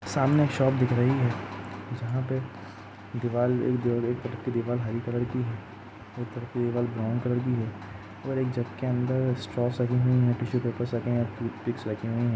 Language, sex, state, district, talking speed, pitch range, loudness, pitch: Hindi, male, Bihar, Gaya, 180 wpm, 115-125 Hz, -28 LUFS, 120 Hz